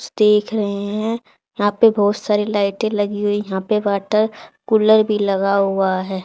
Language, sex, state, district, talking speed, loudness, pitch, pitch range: Hindi, female, Haryana, Charkhi Dadri, 165 wpm, -18 LUFS, 205 Hz, 200-215 Hz